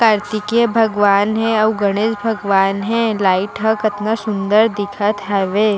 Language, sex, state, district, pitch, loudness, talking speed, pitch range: Chhattisgarhi, female, Chhattisgarh, Raigarh, 210 Hz, -16 LUFS, 135 wpm, 200-220 Hz